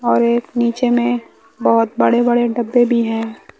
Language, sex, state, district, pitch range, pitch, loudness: Hindi, male, Bihar, West Champaran, 230-240 Hz, 235 Hz, -16 LUFS